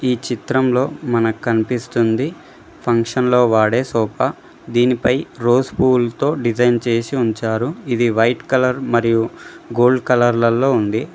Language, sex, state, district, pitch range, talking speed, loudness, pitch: Telugu, male, Telangana, Mahabubabad, 115-125 Hz, 120 wpm, -17 LUFS, 120 Hz